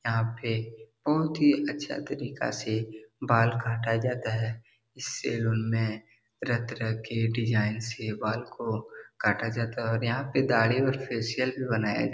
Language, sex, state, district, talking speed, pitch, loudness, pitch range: Hindi, male, Bihar, Darbhanga, 165 wpm, 115 Hz, -29 LUFS, 110-120 Hz